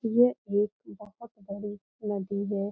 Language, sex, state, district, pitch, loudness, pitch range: Hindi, female, Bihar, Lakhisarai, 205 Hz, -30 LUFS, 200-220 Hz